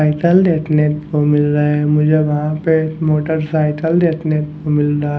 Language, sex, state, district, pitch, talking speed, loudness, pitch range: Hindi, male, Haryana, Jhajjar, 150 Hz, 160 wpm, -15 LUFS, 150-160 Hz